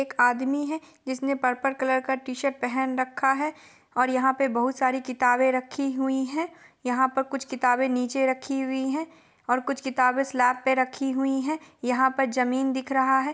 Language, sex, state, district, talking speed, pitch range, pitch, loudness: Hindi, female, Bihar, Gopalganj, 190 wpm, 255-270 Hz, 265 Hz, -25 LUFS